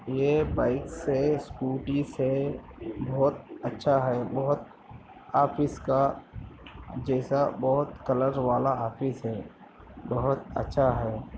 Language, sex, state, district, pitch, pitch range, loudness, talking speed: Hindi, male, Maharashtra, Dhule, 135 Hz, 130-140 Hz, -28 LUFS, 105 wpm